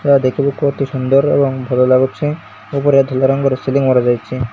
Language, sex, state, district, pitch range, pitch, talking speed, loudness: Odia, male, Odisha, Malkangiri, 130-140 Hz, 135 Hz, 160 wpm, -15 LUFS